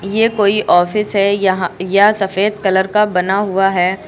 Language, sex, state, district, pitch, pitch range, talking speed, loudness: Hindi, female, Uttar Pradesh, Lucknow, 195 Hz, 190-210 Hz, 175 wpm, -14 LUFS